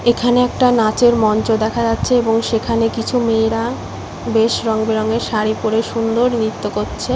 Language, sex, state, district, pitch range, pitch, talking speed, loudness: Bengali, female, West Bengal, Paschim Medinipur, 220-235 Hz, 225 Hz, 150 wpm, -16 LUFS